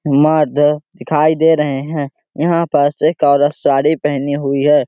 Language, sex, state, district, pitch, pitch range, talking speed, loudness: Hindi, male, Chhattisgarh, Sarguja, 145 Hz, 145-155 Hz, 160 wpm, -14 LUFS